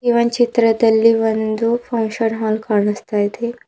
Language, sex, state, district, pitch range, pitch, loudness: Kannada, female, Karnataka, Bidar, 220-235 Hz, 225 Hz, -17 LUFS